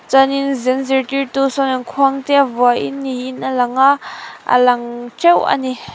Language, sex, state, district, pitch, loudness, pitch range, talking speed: Mizo, female, Mizoram, Aizawl, 270 Hz, -16 LUFS, 250-275 Hz, 170 wpm